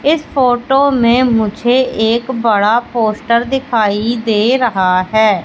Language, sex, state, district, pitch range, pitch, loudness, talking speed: Hindi, female, Madhya Pradesh, Katni, 220-255 Hz, 235 Hz, -13 LUFS, 120 wpm